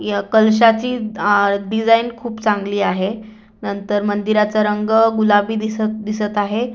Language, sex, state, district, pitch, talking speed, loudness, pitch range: Marathi, female, Maharashtra, Aurangabad, 215 Hz, 125 wpm, -17 LUFS, 205-220 Hz